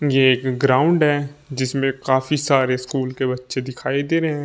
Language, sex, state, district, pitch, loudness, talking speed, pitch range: Hindi, male, Uttar Pradesh, Shamli, 135 Hz, -20 LUFS, 190 wpm, 130-145 Hz